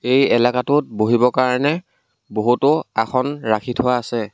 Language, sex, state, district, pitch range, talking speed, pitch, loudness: Assamese, male, Assam, Sonitpur, 115-135 Hz, 125 wpm, 125 Hz, -18 LUFS